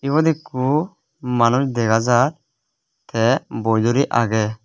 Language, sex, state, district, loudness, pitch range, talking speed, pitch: Chakma, male, Tripura, West Tripura, -19 LUFS, 115-145 Hz, 115 wpm, 125 Hz